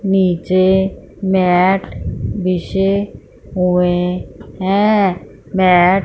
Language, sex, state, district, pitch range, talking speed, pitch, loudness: Hindi, female, Punjab, Fazilka, 180-190 Hz, 70 wpm, 185 Hz, -15 LUFS